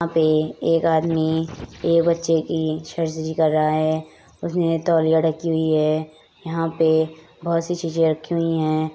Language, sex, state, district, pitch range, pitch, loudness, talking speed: Hindi, female, Bihar, Purnia, 155-165 Hz, 160 Hz, -21 LUFS, 160 wpm